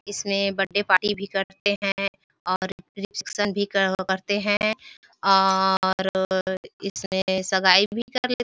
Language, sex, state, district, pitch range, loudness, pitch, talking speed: Hindi, female, Chhattisgarh, Bilaspur, 190-205 Hz, -23 LUFS, 195 Hz, 130 wpm